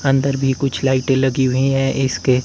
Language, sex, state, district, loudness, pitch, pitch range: Hindi, male, Himachal Pradesh, Shimla, -17 LUFS, 135 Hz, 130-135 Hz